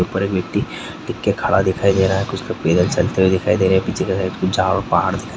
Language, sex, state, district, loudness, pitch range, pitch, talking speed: Hindi, male, Bihar, Gopalganj, -18 LUFS, 95-100 Hz, 95 Hz, 270 wpm